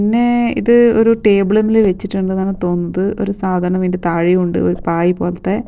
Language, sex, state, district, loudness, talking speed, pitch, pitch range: Malayalam, female, Kerala, Wayanad, -15 LUFS, 150 wpm, 195 Hz, 180-215 Hz